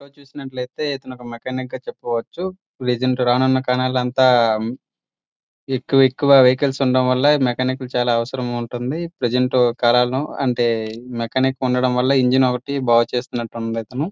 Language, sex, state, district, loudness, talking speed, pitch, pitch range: Telugu, male, Andhra Pradesh, Srikakulam, -19 LUFS, 130 wpm, 125 Hz, 120-130 Hz